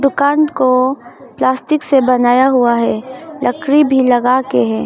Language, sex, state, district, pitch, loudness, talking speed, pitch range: Hindi, female, Arunachal Pradesh, Longding, 260 Hz, -13 LUFS, 150 wpm, 245-280 Hz